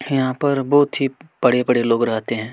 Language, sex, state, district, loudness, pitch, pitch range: Hindi, male, Chhattisgarh, Kabirdham, -19 LUFS, 130 Hz, 120-140 Hz